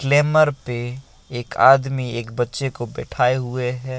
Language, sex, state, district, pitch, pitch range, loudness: Hindi, male, Assam, Kamrup Metropolitan, 130 Hz, 120-135 Hz, -20 LUFS